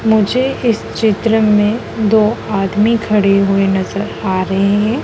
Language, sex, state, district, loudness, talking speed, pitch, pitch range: Hindi, female, Madhya Pradesh, Dhar, -14 LUFS, 145 wpm, 210 Hz, 195-220 Hz